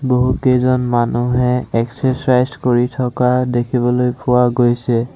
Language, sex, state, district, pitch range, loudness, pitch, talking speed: Assamese, male, Assam, Sonitpur, 120-125 Hz, -16 LUFS, 125 Hz, 95 wpm